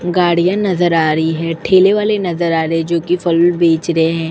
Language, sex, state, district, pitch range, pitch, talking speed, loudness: Hindi, female, Uttar Pradesh, Etah, 165-180 Hz, 170 Hz, 235 wpm, -14 LUFS